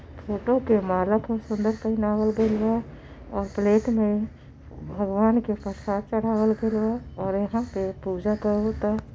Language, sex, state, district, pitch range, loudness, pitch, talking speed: Bhojpuri, female, Uttar Pradesh, Gorakhpur, 205-220 Hz, -25 LUFS, 215 Hz, 145 wpm